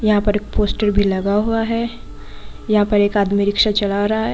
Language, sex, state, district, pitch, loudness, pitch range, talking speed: Hindi, female, Bihar, Saran, 210 Hz, -17 LUFS, 205-215 Hz, 220 wpm